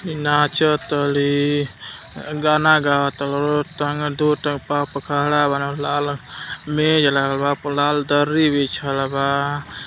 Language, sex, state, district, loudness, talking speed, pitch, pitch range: Hindi, male, Uttar Pradesh, Deoria, -19 LUFS, 85 wpm, 145 Hz, 140-150 Hz